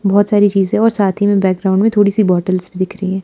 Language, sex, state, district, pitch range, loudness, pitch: Hindi, female, Himachal Pradesh, Shimla, 190-205 Hz, -14 LUFS, 200 Hz